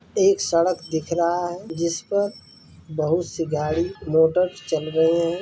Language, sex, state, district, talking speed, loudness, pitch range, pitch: Hindi, male, Uttar Pradesh, Varanasi, 145 wpm, -22 LUFS, 160-180 Hz, 170 Hz